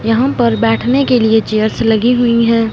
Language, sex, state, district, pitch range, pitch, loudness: Hindi, female, Punjab, Fazilka, 225-245 Hz, 230 Hz, -12 LUFS